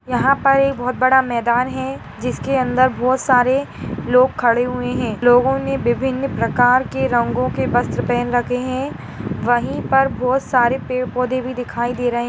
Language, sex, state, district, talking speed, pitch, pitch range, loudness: Hindi, female, Bihar, Jahanabad, 170 wpm, 250 Hz, 245-265 Hz, -18 LUFS